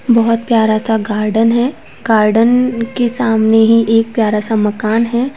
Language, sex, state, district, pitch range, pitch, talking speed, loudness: Hindi, female, Uttarakhand, Tehri Garhwal, 220-235 Hz, 225 Hz, 135 wpm, -13 LUFS